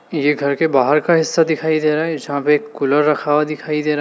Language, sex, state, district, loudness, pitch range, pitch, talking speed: Hindi, male, Uttar Pradesh, Lalitpur, -17 LUFS, 150-160 Hz, 150 Hz, 300 wpm